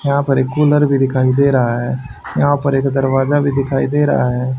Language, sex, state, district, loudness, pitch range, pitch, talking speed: Hindi, male, Haryana, Charkhi Dadri, -15 LUFS, 130-140 Hz, 135 Hz, 235 wpm